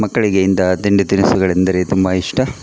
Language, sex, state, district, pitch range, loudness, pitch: Kannada, male, Karnataka, Dakshina Kannada, 90-100 Hz, -15 LUFS, 95 Hz